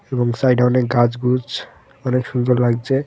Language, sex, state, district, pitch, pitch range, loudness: Bengali, male, Tripura, West Tripura, 125 Hz, 120-130 Hz, -18 LUFS